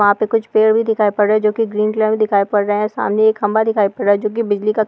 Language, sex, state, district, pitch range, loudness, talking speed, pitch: Hindi, female, Bihar, Bhagalpur, 205-220 Hz, -16 LUFS, 330 wpm, 215 Hz